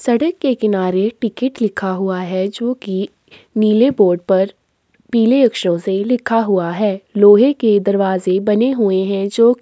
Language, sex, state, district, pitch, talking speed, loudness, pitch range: Hindi, female, Uttar Pradesh, Jyotiba Phule Nagar, 210 Hz, 160 wpm, -15 LUFS, 195-235 Hz